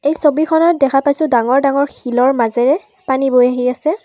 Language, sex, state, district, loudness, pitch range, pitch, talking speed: Assamese, female, Assam, Kamrup Metropolitan, -14 LUFS, 250-300 Hz, 275 Hz, 160 wpm